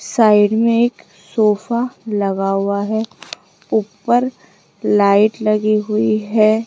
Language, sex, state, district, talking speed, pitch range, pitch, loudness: Hindi, female, Rajasthan, Jaipur, 110 wpm, 205-225 Hz, 215 Hz, -16 LUFS